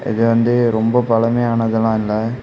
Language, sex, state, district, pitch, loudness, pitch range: Tamil, male, Tamil Nadu, Kanyakumari, 115 Hz, -16 LUFS, 110-120 Hz